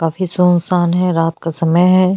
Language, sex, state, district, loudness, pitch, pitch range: Hindi, female, Chhattisgarh, Bastar, -14 LUFS, 175 Hz, 165-180 Hz